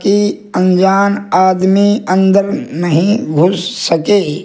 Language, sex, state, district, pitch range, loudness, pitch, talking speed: Hindi, male, Rajasthan, Jaipur, 185-200 Hz, -12 LUFS, 190 Hz, 95 wpm